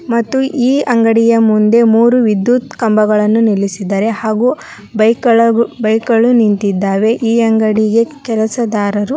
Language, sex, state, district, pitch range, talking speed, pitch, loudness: Kannada, male, Karnataka, Dharwad, 215-235 Hz, 120 wpm, 225 Hz, -12 LUFS